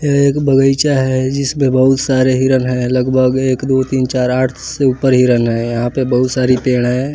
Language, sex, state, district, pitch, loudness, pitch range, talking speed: Hindi, male, Bihar, West Champaran, 130 Hz, -14 LUFS, 125-135 Hz, 210 wpm